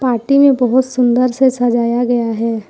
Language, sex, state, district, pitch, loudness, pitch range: Hindi, female, Jharkhand, Ranchi, 245 Hz, -13 LUFS, 235-260 Hz